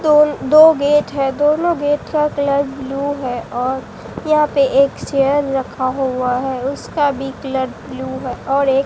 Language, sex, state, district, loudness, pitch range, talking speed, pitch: Hindi, female, Bihar, Katihar, -17 LUFS, 265-290 Hz, 175 wpm, 275 Hz